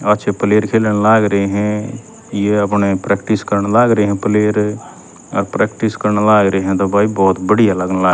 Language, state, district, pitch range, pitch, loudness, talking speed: Haryanvi, Haryana, Rohtak, 100-105 Hz, 105 Hz, -14 LUFS, 200 wpm